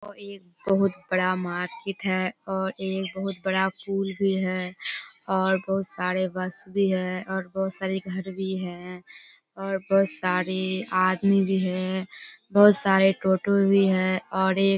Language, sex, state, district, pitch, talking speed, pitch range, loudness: Hindi, female, Bihar, Kishanganj, 190 Hz, 160 wpm, 185-195 Hz, -25 LUFS